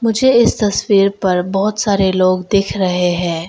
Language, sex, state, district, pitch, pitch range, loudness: Hindi, female, Arunachal Pradesh, Longding, 195 Hz, 185-210 Hz, -14 LUFS